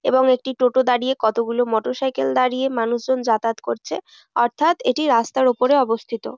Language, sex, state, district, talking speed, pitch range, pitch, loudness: Bengali, female, West Bengal, Jhargram, 180 wpm, 230-260 Hz, 250 Hz, -20 LUFS